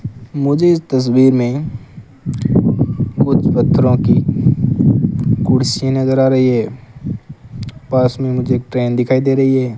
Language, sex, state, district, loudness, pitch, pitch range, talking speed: Hindi, male, Rajasthan, Bikaner, -14 LUFS, 130 Hz, 125-135 Hz, 115 wpm